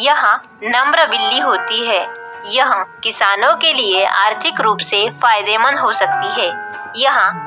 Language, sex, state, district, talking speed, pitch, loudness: Hindi, female, Bihar, Katihar, 135 wpm, 235 Hz, -13 LUFS